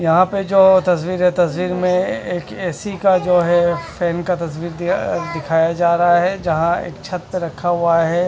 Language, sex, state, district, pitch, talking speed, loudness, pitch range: Hindi, male, Punjab, Fazilka, 175 Hz, 190 wpm, -17 LUFS, 170-180 Hz